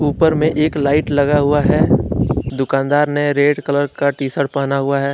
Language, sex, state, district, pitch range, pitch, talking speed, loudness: Hindi, male, Jharkhand, Deoghar, 140-150 Hz, 145 Hz, 200 wpm, -16 LUFS